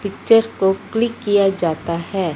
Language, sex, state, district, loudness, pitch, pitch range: Hindi, female, Punjab, Fazilka, -18 LUFS, 195 Hz, 175-225 Hz